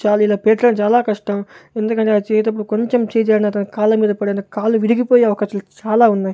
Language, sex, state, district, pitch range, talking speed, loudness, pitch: Telugu, male, Andhra Pradesh, Sri Satya Sai, 205-225 Hz, 190 wpm, -16 LUFS, 215 Hz